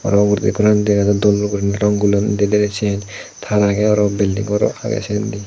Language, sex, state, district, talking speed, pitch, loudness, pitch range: Chakma, male, Tripura, Dhalai, 220 wpm, 105 Hz, -16 LUFS, 100-105 Hz